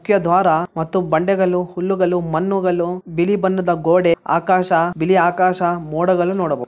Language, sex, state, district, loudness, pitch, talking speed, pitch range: Kannada, male, Karnataka, Bellary, -17 LUFS, 180 Hz, 115 wpm, 170-185 Hz